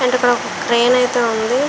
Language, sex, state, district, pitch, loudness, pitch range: Telugu, female, Andhra Pradesh, Srikakulam, 245 Hz, -16 LUFS, 235-250 Hz